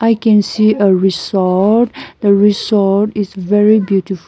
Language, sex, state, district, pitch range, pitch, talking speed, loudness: English, female, Nagaland, Kohima, 195-215 Hz, 205 Hz, 140 wpm, -13 LUFS